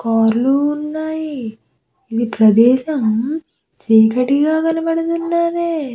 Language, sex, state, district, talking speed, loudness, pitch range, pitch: Telugu, female, Andhra Pradesh, Visakhapatnam, 60 wpm, -16 LUFS, 230-315 Hz, 280 Hz